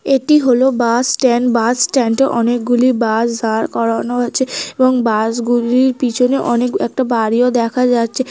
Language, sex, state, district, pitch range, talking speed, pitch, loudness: Bengali, female, West Bengal, North 24 Parganas, 235-255 Hz, 165 wpm, 245 Hz, -14 LUFS